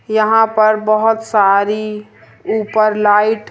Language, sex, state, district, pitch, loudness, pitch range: Hindi, female, Madhya Pradesh, Umaria, 215 Hz, -13 LUFS, 210-220 Hz